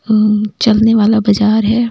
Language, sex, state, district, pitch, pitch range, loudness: Hindi, female, Delhi, New Delhi, 215 Hz, 210-220 Hz, -12 LUFS